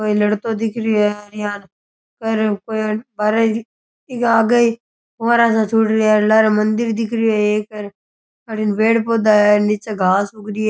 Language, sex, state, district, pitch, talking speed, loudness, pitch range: Rajasthani, male, Rajasthan, Churu, 215 Hz, 170 wpm, -17 LUFS, 210-225 Hz